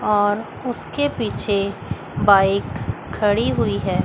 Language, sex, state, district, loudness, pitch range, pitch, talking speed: Hindi, female, Chandigarh, Chandigarh, -20 LUFS, 200-230 Hz, 205 Hz, 105 wpm